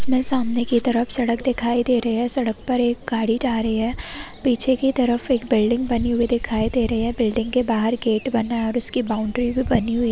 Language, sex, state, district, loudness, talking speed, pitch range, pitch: Hindi, female, Chhattisgarh, Korba, -21 LUFS, 230 wpm, 230-250 Hz, 240 Hz